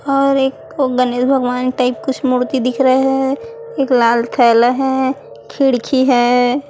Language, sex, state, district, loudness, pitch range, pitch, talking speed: Hindi, female, Chhattisgarh, Raipur, -15 LUFS, 250-270 Hz, 260 Hz, 150 wpm